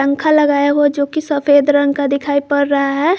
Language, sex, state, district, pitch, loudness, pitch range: Hindi, female, Jharkhand, Garhwa, 285 Hz, -14 LUFS, 280-295 Hz